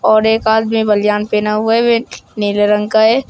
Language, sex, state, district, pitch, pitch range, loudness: Hindi, male, Uttar Pradesh, Shamli, 220 Hz, 210-225 Hz, -13 LUFS